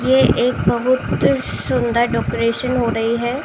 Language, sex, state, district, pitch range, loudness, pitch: Hindi, female, Uttar Pradesh, Jalaun, 230-250 Hz, -18 LUFS, 235 Hz